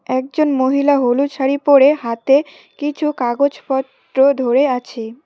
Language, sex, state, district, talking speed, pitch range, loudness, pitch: Bengali, female, West Bengal, Cooch Behar, 115 wpm, 255-285 Hz, -16 LUFS, 275 Hz